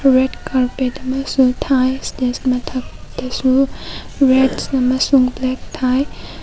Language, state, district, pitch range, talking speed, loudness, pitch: Manipuri, Manipur, Imphal West, 255-265 Hz, 95 wpm, -17 LUFS, 260 Hz